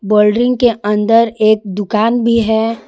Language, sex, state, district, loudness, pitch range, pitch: Hindi, female, Jharkhand, Garhwa, -13 LUFS, 210-230 Hz, 220 Hz